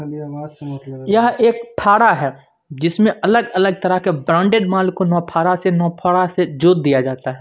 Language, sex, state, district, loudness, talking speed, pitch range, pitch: Hindi, male, Punjab, Kapurthala, -16 LUFS, 170 wpm, 150-190 Hz, 180 Hz